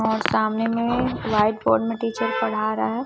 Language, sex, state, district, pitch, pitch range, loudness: Hindi, female, Chhattisgarh, Raipur, 220 Hz, 215-230 Hz, -22 LUFS